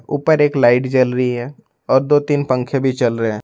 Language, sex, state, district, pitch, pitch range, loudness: Hindi, male, Jharkhand, Ranchi, 130 Hz, 125-145 Hz, -16 LUFS